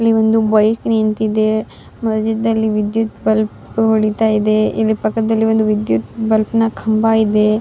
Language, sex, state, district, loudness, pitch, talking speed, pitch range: Kannada, female, Karnataka, Raichur, -15 LUFS, 220 Hz, 125 wpm, 215-225 Hz